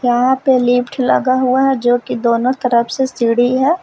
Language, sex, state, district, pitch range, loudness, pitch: Hindi, female, Jharkhand, Palamu, 245-260 Hz, -14 LUFS, 250 Hz